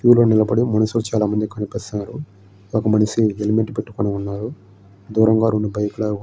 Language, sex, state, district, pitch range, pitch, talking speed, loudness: Telugu, male, Andhra Pradesh, Srikakulam, 105-110 Hz, 105 Hz, 165 wpm, -19 LUFS